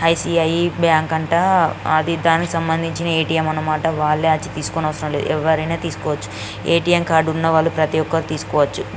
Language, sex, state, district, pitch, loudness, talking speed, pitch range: Telugu, female, Andhra Pradesh, Guntur, 160 Hz, -18 LUFS, 175 wpm, 155-165 Hz